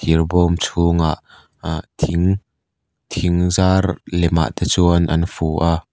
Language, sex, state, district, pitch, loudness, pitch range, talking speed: Mizo, male, Mizoram, Aizawl, 85 Hz, -18 LUFS, 80-90 Hz, 130 wpm